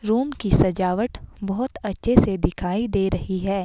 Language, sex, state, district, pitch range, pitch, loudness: Hindi, female, Himachal Pradesh, Shimla, 190-230 Hz, 200 Hz, -22 LUFS